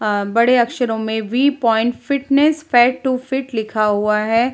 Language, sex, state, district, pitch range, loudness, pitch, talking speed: Hindi, female, Bihar, Vaishali, 220-260 Hz, -17 LUFS, 240 Hz, 170 wpm